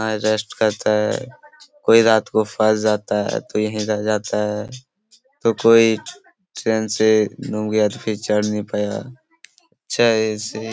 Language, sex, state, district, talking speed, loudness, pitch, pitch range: Hindi, male, Chhattisgarh, Korba, 140 wpm, -19 LUFS, 110 Hz, 105-115 Hz